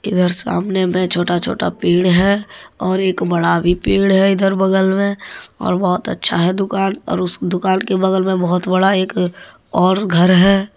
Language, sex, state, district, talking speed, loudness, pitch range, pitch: Hindi, male, Jharkhand, Deoghar, 180 wpm, -16 LUFS, 180-195 Hz, 190 Hz